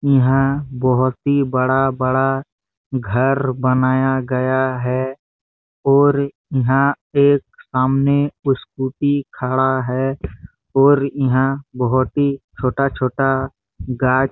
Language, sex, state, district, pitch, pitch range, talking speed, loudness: Hindi, male, Chhattisgarh, Bastar, 130 Hz, 130-140 Hz, 95 wpm, -18 LUFS